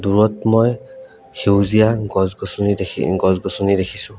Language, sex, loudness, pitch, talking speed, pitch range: Assamese, male, -17 LUFS, 100 Hz, 100 wpm, 95-110 Hz